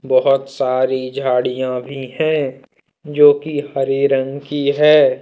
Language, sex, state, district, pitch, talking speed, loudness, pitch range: Hindi, male, Jharkhand, Deoghar, 135 Hz, 125 wpm, -16 LUFS, 130-145 Hz